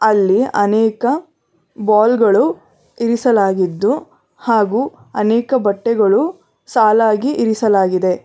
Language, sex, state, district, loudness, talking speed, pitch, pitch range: Kannada, female, Karnataka, Bangalore, -15 LUFS, 75 wpm, 220 Hz, 205-240 Hz